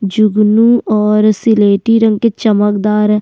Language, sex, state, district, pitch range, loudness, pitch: Hindi, female, Uttarakhand, Tehri Garhwal, 210-225 Hz, -11 LUFS, 215 Hz